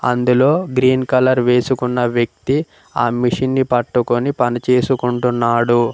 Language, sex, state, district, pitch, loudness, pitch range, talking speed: Telugu, male, Telangana, Mahabubabad, 125 Hz, -16 LUFS, 120-130 Hz, 110 wpm